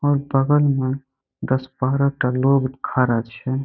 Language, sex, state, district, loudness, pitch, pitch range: Maithili, male, Bihar, Saharsa, -20 LUFS, 135 Hz, 130-140 Hz